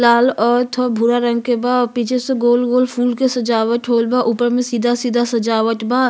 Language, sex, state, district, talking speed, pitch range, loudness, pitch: Bhojpuri, female, Uttar Pradesh, Ghazipur, 215 wpm, 235-250 Hz, -16 LUFS, 240 Hz